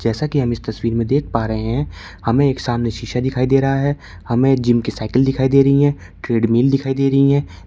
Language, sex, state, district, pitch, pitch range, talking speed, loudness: Hindi, male, Uttar Pradesh, Shamli, 125 Hz, 115-135 Hz, 240 wpm, -17 LUFS